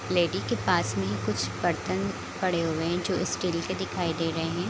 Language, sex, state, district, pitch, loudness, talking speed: Hindi, female, Bihar, Kishanganj, 165 Hz, -28 LUFS, 205 wpm